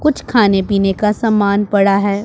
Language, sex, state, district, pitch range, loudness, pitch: Hindi, male, Punjab, Pathankot, 200-210 Hz, -14 LUFS, 205 Hz